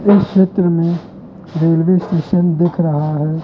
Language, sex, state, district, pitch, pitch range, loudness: Hindi, male, Madhya Pradesh, Katni, 170 Hz, 165-185 Hz, -15 LUFS